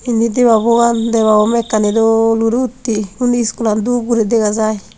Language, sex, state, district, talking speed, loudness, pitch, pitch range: Chakma, female, Tripura, Unakoti, 180 wpm, -14 LUFS, 225 Hz, 220-235 Hz